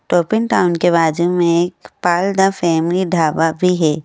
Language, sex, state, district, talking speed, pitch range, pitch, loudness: Hindi, female, Madhya Pradesh, Bhopal, 195 wpm, 165-180 Hz, 175 Hz, -16 LUFS